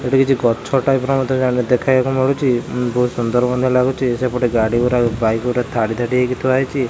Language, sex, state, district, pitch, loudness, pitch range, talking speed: Odia, male, Odisha, Khordha, 125 Hz, -17 LUFS, 120-130 Hz, 200 wpm